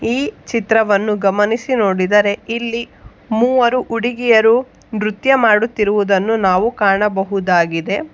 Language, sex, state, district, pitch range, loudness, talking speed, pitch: Kannada, female, Karnataka, Bangalore, 200-235 Hz, -15 LUFS, 80 wpm, 220 Hz